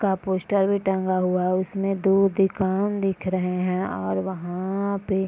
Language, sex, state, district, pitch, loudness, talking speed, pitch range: Hindi, female, Bihar, Purnia, 190 Hz, -24 LUFS, 180 wpm, 185-195 Hz